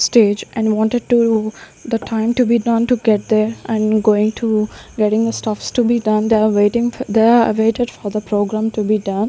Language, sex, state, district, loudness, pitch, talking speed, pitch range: English, female, Maharashtra, Gondia, -16 LUFS, 220 Hz, 205 wpm, 215-230 Hz